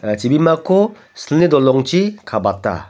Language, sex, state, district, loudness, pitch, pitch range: Garo, male, Meghalaya, North Garo Hills, -15 LUFS, 145 Hz, 110-180 Hz